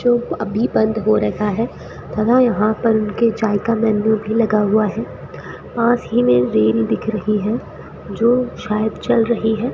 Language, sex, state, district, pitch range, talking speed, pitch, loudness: Hindi, female, Rajasthan, Bikaner, 210-230 Hz, 180 wpm, 220 Hz, -17 LUFS